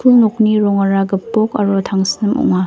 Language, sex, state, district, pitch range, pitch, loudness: Garo, female, Meghalaya, West Garo Hills, 195-220 Hz, 205 Hz, -14 LUFS